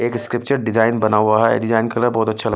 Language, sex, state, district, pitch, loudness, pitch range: Hindi, male, Delhi, New Delhi, 115 Hz, -17 LUFS, 110-120 Hz